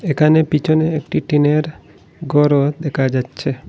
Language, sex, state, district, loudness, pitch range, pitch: Bengali, male, Assam, Hailakandi, -16 LUFS, 145-155 Hz, 150 Hz